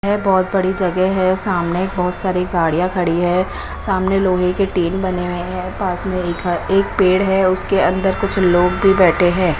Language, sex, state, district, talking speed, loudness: Hindi, female, Odisha, Nuapada, 205 wpm, -17 LUFS